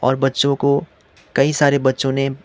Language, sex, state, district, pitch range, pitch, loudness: Hindi, male, Sikkim, Gangtok, 135-140 Hz, 135 Hz, -17 LUFS